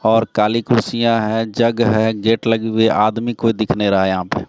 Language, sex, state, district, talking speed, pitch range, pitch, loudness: Hindi, male, Bihar, Katihar, 240 wpm, 110-115 Hz, 115 Hz, -16 LUFS